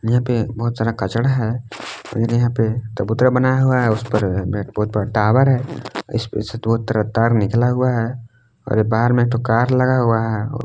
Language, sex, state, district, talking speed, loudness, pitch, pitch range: Hindi, male, Jharkhand, Palamu, 180 wpm, -18 LUFS, 115 Hz, 110-125 Hz